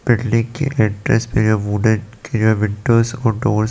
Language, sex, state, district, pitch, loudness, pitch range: Hindi, male, Chandigarh, Chandigarh, 115 Hz, -17 LUFS, 110-115 Hz